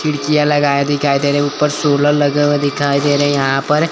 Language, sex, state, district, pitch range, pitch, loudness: Hindi, male, Chandigarh, Chandigarh, 145-150 Hz, 145 Hz, -14 LUFS